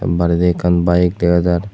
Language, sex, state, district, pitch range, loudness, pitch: Chakma, male, Tripura, West Tripura, 85-90 Hz, -15 LUFS, 85 Hz